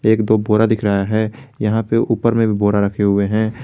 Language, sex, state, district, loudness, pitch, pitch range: Hindi, male, Jharkhand, Garhwa, -17 LUFS, 110 Hz, 105-115 Hz